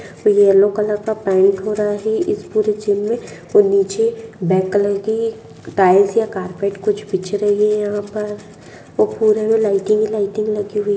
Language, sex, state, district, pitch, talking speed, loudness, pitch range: Hindi, female, Bihar, Purnia, 210 Hz, 185 wpm, -17 LUFS, 200-220 Hz